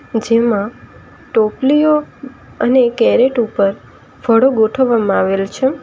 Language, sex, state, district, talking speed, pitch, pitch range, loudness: Gujarati, female, Gujarat, Valsad, 95 wpm, 235 Hz, 215-260 Hz, -14 LUFS